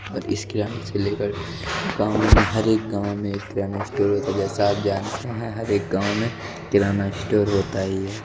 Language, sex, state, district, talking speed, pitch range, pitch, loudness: Hindi, male, Odisha, Malkangiri, 210 wpm, 100-110 Hz, 100 Hz, -23 LUFS